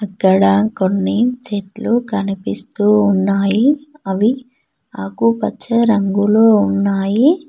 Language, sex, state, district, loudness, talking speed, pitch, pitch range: Telugu, female, Telangana, Mahabubabad, -15 LUFS, 70 wpm, 210 Hz, 195-235 Hz